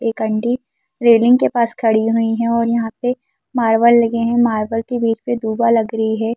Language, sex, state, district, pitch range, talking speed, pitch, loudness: Hindi, female, Chhattisgarh, Kabirdham, 225-235 Hz, 215 wpm, 230 Hz, -16 LUFS